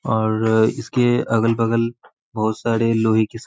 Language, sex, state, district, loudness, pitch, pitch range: Hindi, male, Bihar, Saharsa, -19 LUFS, 115 Hz, 110-115 Hz